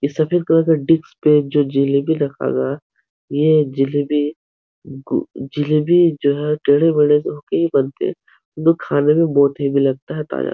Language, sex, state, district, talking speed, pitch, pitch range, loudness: Hindi, male, Uttar Pradesh, Etah, 170 wpm, 145 Hz, 140-155 Hz, -17 LUFS